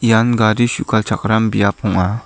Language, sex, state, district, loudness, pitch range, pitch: Garo, male, Meghalaya, South Garo Hills, -15 LUFS, 105-115 Hz, 110 Hz